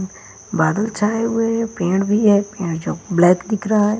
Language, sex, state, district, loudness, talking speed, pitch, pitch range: Hindi, female, Bihar, Patna, -18 LUFS, 195 wpm, 205 Hz, 180-215 Hz